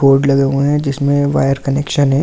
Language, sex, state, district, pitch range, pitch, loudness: Hindi, male, Delhi, New Delhi, 135-145 Hz, 140 Hz, -14 LUFS